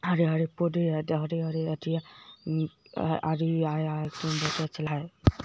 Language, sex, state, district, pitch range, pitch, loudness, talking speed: Hindi, female, Bihar, Jamui, 155-165 Hz, 160 Hz, -29 LUFS, 130 wpm